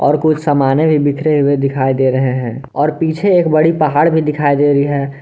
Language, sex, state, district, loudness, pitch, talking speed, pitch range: Hindi, male, Jharkhand, Garhwa, -13 LUFS, 145 Hz, 230 wpm, 140-155 Hz